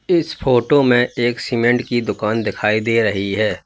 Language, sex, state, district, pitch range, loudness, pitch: Hindi, male, Uttar Pradesh, Lalitpur, 110-125 Hz, -17 LUFS, 120 Hz